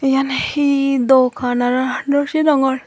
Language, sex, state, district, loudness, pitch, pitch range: Chakma, female, Tripura, Dhalai, -16 LUFS, 270 Hz, 255-285 Hz